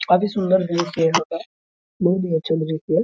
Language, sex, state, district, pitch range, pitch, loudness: Hindi, male, Bihar, Araria, 160-185 Hz, 165 Hz, -21 LUFS